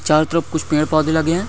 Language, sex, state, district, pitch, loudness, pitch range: Hindi, male, Maharashtra, Chandrapur, 160 Hz, -18 LUFS, 155-165 Hz